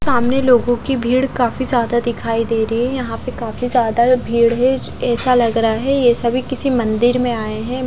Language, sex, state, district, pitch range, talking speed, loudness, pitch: Hindi, female, Punjab, Fazilka, 230-255 Hz, 205 wpm, -16 LUFS, 240 Hz